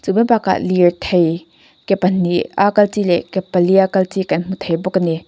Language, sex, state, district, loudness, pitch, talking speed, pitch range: Mizo, female, Mizoram, Aizawl, -16 LUFS, 185 Hz, 250 wpm, 175-195 Hz